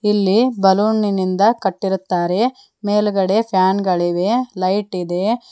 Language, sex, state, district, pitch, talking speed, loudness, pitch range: Kannada, female, Karnataka, Koppal, 195 Hz, 100 wpm, -17 LUFS, 185-215 Hz